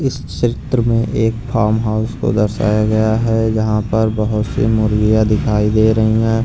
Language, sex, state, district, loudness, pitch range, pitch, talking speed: Hindi, male, Punjab, Pathankot, -16 LUFS, 110-115 Hz, 110 Hz, 175 wpm